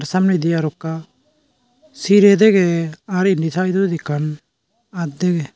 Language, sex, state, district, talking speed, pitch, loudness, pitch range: Chakma, male, Tripura, Unakoti, 110 wpm, 185 Hz, -17 LUFS, 160-205 Hz